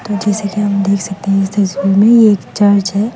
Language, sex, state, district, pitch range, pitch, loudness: Hindi, female, Meghalaya, West Garo Hills, 195-210 Hz, 200 Hz, -12 LUFS